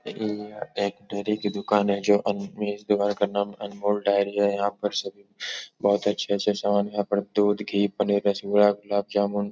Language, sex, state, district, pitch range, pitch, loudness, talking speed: Hindi, male, Uttar Pradesh, Etah, 100-105 Hz, 100 Hz, -25 LUFS, 185 wpm